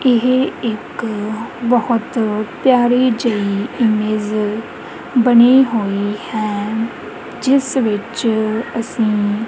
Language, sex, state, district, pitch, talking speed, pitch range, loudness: Punjabi, female, Punjab, Kapurthala, 230 Hz, 75 wpm, 215-245 Hz, -16 LUFS